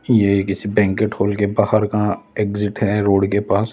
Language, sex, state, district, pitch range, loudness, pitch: Hindi, male, Delhi, New Delhi, 100-105 Hz, -18 LUFS, 105 Hz